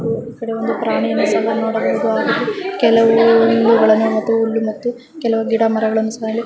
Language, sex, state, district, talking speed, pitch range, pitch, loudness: Kannada, female, Karnataka, Chamarajanagar, 95 wpm, 220-230 Hz, 225 Hz, -16 LUFS